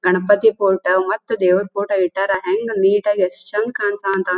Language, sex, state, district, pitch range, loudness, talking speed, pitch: Kannada, female, Karnataka, Dharwad, 185-215 Hz, -18 LUFS, 165 wpm, 200 Hz